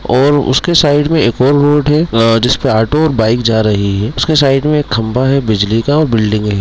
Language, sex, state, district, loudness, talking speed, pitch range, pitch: Hindi, male, Bihar, Muzaffarpur, -11 LUFS, 235 wpm, 110-145 Hz, 130 Hz